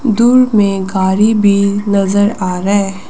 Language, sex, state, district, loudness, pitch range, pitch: Hindi, female, Arunachal Pradesh, Lower Dibang Valley, -12 LUFS, 195-210 Hz, 200 Hz